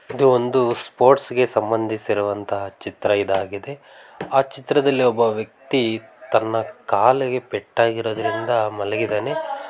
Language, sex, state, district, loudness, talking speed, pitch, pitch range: Kannada, male, Karnataka, Mysore, -20 LUFS, 100 wpm, 115 Hz, 110-130 Hz